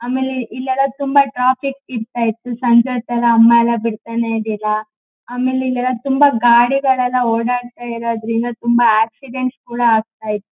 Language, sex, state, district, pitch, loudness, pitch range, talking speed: Kannada, female, Karnataka, Shimoga, 240 Hz, -16 LUFS, 230-255 Hz, 125 wpm